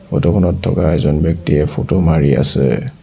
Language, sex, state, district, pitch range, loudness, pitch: Assamese, male, Assam, Sonitpur, 70-80 Hz, -14 LUFS, 75 Hz